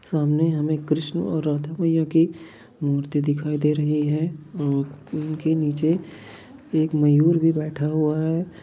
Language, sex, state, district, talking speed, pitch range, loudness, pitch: Hindi, male, Andhra Pradesh, Anantapur, 145 wpm, 150-160 Hz, -23 LUFS, 155 Hz